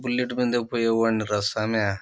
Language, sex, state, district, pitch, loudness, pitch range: Telugu, male, Andhra Pradesh, Chittoor, 115 Hz, -24 LUFS, 110-120 Hz